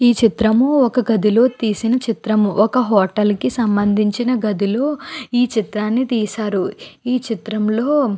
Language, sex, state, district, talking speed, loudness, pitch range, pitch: Telugu, female, Andhra Pradesh, Guntur, 125 wpm, -17 LUFS, 210-250 Hz, 225 Hz